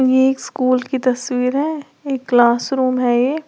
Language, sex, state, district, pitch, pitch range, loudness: Hindi, female, Uttar Pradesh, Lalitpur, 255 Hz, 250-270 Hz, -17 LUFS